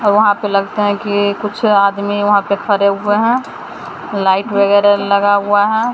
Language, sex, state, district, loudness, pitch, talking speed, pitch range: Hindi, female, Bihar, Patna, -14 LUFS, 205 Hz, 170 wpm, 200-210 Hz